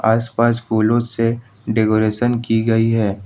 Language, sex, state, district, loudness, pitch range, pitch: Hindi, male, Jharkhand, Ranchi, -17 LUFS, 110-115 Hz, 115 Hz